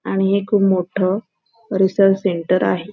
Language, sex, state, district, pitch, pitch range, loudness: Marathi, female, Maharashtra, Nagpur, 195 Hz, 190-200 Hz, -18 LUFS